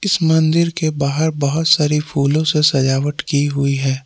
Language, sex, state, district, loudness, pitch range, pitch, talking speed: Hindi, male, Jharkhand, Palamu, -16 LUFS, 140-160 Hz, 150 Hz, 175 wpm